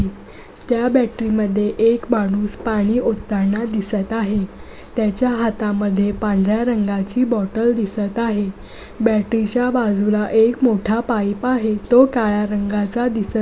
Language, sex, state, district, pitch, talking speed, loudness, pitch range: Marathi, female, Maharashtra, Pune, 215 Hz, 130 wpm, -18 LUFS, 205-235 Hz